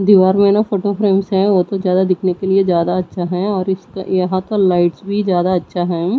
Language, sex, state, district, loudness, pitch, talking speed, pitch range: Hindi, female, Odisha, Nuapada, -16 LUFS, 190 Hz, 235 wpm, 180-195 Hz